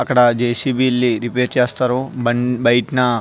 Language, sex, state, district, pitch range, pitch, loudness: Telugu, male, Andhra Pradesh, Visakhapatnam, 120-125 Hz, 125 Hz, -17 LUFS